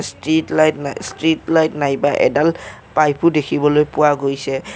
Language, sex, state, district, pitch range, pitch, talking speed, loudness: Assamese, male, Assam, Kamrup Metropolitan, 145-160 Hz, 150 Hz, 140 wpm, -17 LUFS